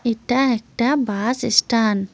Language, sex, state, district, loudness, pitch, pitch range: Bengali, female, West Bengal, Cooch Behar, -19 LUFS, 235 Hz, 215-250 Hz